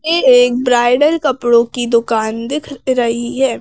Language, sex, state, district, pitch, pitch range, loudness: Hindi, female, Madhya Pradesh, Bhopal, 245 Hz, 235-270 Hz, -14 LUFS